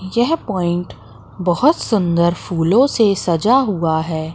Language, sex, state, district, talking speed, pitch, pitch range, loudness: Hindi, female, Madhya Pradesh, Katni, 125 wpm, 175 Hz, 165-215 Hz, -17 LUFS